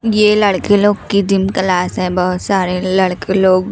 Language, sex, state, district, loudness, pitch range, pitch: Hindi, female, Bihar, Katihar, -14 LUFS, 185-205 Hz, 190 Hz